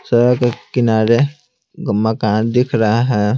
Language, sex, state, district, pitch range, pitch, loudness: Hindi, male, Bihar, Patna, 110-125 Hz, 120 Hz, -16 LUFS